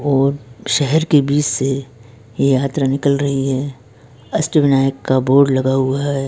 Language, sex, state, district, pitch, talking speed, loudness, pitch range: Hindi, male, Uttarakhand, Tehri Garhwal, 135 Hz, 155 wpm, -16 LUFS, 130-140 Hz